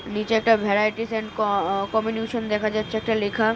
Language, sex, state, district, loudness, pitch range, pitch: Bengali, female, West Bengal, North 24 Parganas, -23 LUFS, 210-225 Hz, 220 Hz